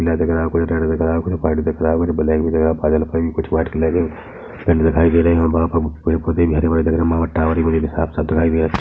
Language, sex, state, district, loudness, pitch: Hindi, male, Chhattisgarh, Rajnandgaon, -17 LUFS, 80 Hz